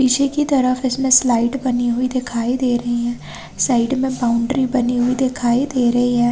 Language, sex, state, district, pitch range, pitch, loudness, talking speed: Hindi, female, Chhattisgarh, Balrampur, 240-260 Hz, 250 Hz, -18 LUFS, 190 wpm